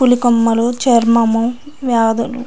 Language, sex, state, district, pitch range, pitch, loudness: Telugu, female, Andhra Pradesh, Srikakulam, 230-250 Hz, 235 Hz, -14 LUFS